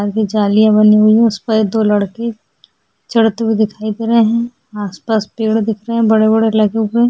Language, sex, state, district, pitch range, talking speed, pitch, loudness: Hindi, female, Goa, North and South Goa, 215-225 Hz, 205 wpm, 220 Hz, -14 LUFS